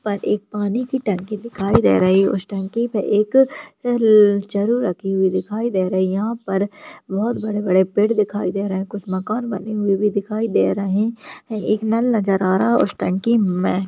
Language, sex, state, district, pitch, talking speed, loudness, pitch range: Hindi, female, Rajasthan, Churu, 205 Hz, 205 wpm, -19 LUFS, 195-225 Hz